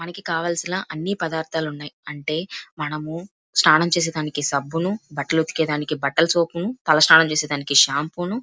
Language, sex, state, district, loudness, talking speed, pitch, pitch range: Telugu, female, Andhra Pradesh, Chittoor, -20 LUFS, 140 wpm, 160 Hz, 150-170 Hz